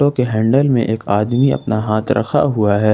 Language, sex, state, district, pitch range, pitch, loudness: Hindi, male, Jharkhand, Ranchi, 110-135 Hz, 115 Hz, -16 LUFS